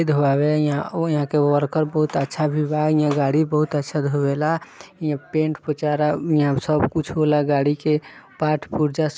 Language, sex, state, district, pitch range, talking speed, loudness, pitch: Bhojpuri, male, Bihar, East Champaran, 145-155 Hz, 190 wpm, -21 LUFS, 150 Hz